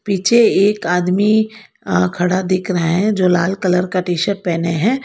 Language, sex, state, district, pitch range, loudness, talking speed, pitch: Hindi, female, Karnataka, Bangalore, 180-205 Hz, -16 LUFS, 190 wpm, 185 Hz